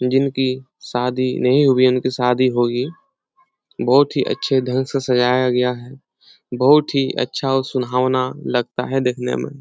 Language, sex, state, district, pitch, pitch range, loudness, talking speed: Hindi, male, Bihar, Lakhisarai, 130 Hz, 125-135 Hz, -18 LUFS, 155 wpm